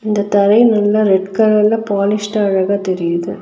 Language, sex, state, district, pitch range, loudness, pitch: Tamil, female, Tamil Nadu, Nilgiris, 195-215 Hz, -14 LUFS, 205 Hz